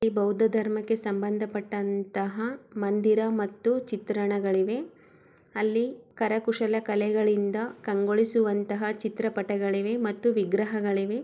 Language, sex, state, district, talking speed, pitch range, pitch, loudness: Kannada, female, Karnataka, Chamarajanagar, 85 wpm, 205-225 Hz, 215 Hz, -27 LUFS